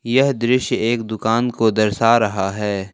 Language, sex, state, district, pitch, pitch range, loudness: Hindi, male, Jharkhand, Ranchi, 115 Hz, 105-120 Hz, -18 LUFS